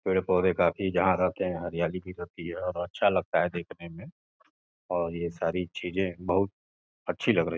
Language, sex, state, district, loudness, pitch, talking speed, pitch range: Hindi, male, Uttar Pradesh, Gorakhpur, -29 LUFS, 90 Hz, 190 wpm, 85-90 Hz